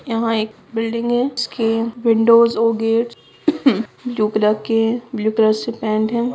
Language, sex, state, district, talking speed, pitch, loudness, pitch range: Hindi, female, Bihar, Sitamarhi, 125 wpm, 230 Hz, -18 LUFS, 220-235 Hz